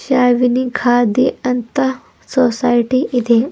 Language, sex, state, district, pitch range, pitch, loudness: Kannada, female, Karnataka, Bidar, 245-255 Hz, 250 Hz, -15 LUFS